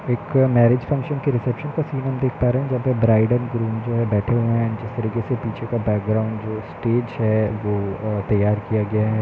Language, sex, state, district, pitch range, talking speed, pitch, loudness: Hindi, male, Bihar, East Champaran, 110-125 Hz, 240 wpm, 115 Hz, -21 LUFS